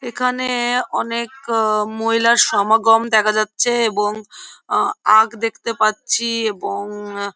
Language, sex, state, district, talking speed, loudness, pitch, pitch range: Bengali, female, West Bengal, Jhargram, 100 wpm, -17 LUFS, 225 Hz, 215-235 Hz